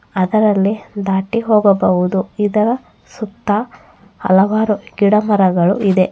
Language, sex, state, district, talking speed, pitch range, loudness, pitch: Kannada, female, Karnataka, Bellary, 90 wpm, 190-215 Hz, -15 LUFS, 205 Hz